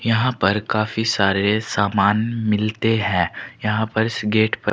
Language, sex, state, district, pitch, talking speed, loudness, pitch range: Hindi, male, Uttar Pradesh, Saharanpur, 110 Hz, 150 wpm, -20 LUFS, 100-110 Hz